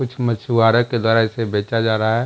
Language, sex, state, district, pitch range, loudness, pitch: Hindi, male, Bihar, Jamui, 110-120 Hz, -18 LUFS, 115 Hz